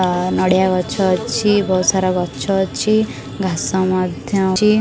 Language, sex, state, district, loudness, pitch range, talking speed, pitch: Odia, female, Odisha, Khordha, -17 LUFS, 185-200 Hz, 135 wpm, 190 Hz